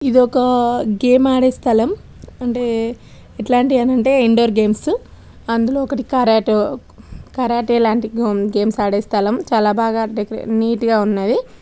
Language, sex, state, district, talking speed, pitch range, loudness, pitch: Telugu, female, Telangana, Nalgonda, 125 wpm, 220-250 Hz, -16 LUFS, 230 Hz